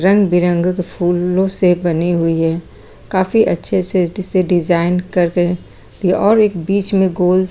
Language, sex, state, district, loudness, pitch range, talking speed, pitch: Hindi, female, Chhattisgarh, Kabirdham, -15 LUFS, 175-190 Hz, 160 wpm, 180 Hz